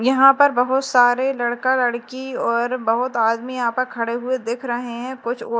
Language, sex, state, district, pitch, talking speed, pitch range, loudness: Hindi, female, Madhya Pradesh, Dhar, 245 Hz, 190 wpm, 235-260 Hz, -20 LUFS